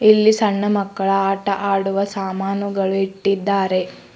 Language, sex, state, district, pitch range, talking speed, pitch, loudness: Kannada, female, Karnataka, Bidar, 195-200 Hz, 85 wpm, 195 Hz, -19 LUFS